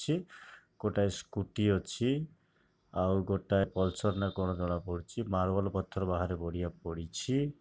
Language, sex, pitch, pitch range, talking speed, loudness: Odia, male, 95 Hz, 90-105 Hz, 125 wpm, -34 LUFS